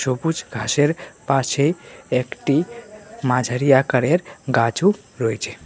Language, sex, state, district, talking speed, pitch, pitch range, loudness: Bengali, male, Tripura, West Tripura, 85 wpm, 135 Hz, 125-165 Hz, -20 LUFS